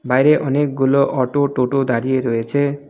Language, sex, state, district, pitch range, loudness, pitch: Bengali, male, West Bengal, Alipurduar, 130-140 Hz, -17 LUFS, 135 Hz